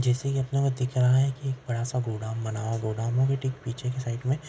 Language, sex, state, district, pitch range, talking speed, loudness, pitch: Marwari, male, Rajasthan, Nagaur, 115-130 Hz, 295 wpm, -28 LUFS, 125 Hz